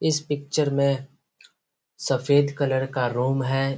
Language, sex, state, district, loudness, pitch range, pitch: Hindi, male, Bihar, Gopalganj, -24 LUFS, 135-145 Hz, 140 Hz